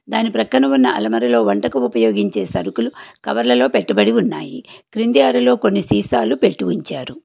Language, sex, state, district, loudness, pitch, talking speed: Telugu, female, Telangana, Hyderabad, -16 LUFS, 125 Hz, 140 wpm